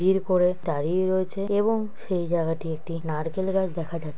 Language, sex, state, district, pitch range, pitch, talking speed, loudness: Bengali, female, West Bengal, North 24 Parganas, 165-190 Hz, 180 Hz, 160 wpm, -26 LUFS